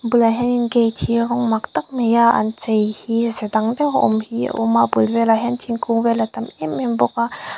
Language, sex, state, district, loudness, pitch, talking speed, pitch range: Mizo, female, Mizoram, Aizawl, -18 LUFS, 230 Hz, 245 wpm, 215-235 Hz